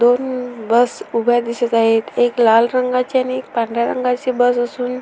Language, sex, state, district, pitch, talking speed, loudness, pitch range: Marathi, female, Maharashtra, Sindhudurg, 245 Hz, 180 wpm, -17 LUFS, 235-250 Hz